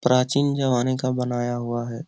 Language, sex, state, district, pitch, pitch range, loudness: Hindi, male, Bihar, Lakhisarai, 125 Hz, 120-130 Hz, -23 LUFS